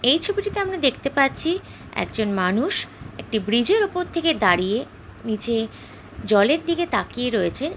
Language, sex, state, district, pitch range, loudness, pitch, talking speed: Bengali, female, West Bengal, Jhargram, 220-340 Hz, -22 LUFS, 270 Hz, 130 wpm